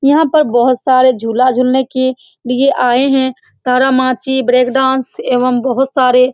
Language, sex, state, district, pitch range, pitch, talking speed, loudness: Hindi, female, Bihar, Saran, 250-265 Hz, 255 Hz, 150 wpm, -12 LUFS